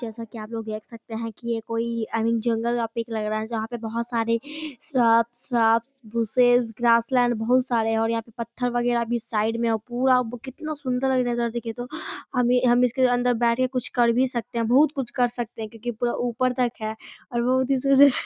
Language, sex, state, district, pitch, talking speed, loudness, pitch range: Hindi, female, Bihar, Darbhanga, 235 Hz, 235 wpm, -24 LUFS, 230-250 Hz